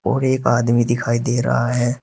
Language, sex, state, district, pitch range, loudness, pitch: Hindi, male, Uttar Pradesh, Shamli, 120-125 Hz, -18 LUFS, 120 Hz